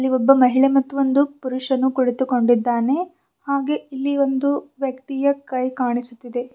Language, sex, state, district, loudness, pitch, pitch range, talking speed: Kannada, female, Karnataka, Bidar, -20 LUFS, 265 Hz, 255-280 Hz, 120 wpm